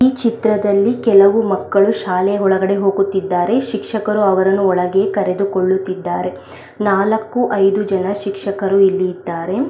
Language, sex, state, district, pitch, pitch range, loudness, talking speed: Kannada, female, Karnataka, Belgaum, 195 Hz, 190-210 Hz, -16 LUFS, 100 wpm